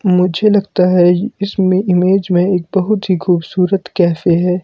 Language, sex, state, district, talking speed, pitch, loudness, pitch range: Hindi, male, Himachal Pradesh, Shimla, 155 wpm, 185 Hz, -14 LUFS, 180-195 Hz